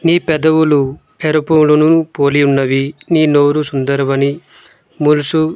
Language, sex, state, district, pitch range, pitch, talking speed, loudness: Telugu, male, Andhra Pradesh, Manyam, 140-160 Hz, 150 Hz, 95 wpm, -13 LUFS